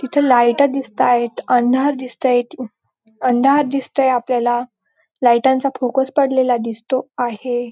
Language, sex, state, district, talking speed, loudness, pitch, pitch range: Marathi, female, Maharashtra, Dhule, 110 wpm, -17 LUFS, 255 Hz, 240-270 Hz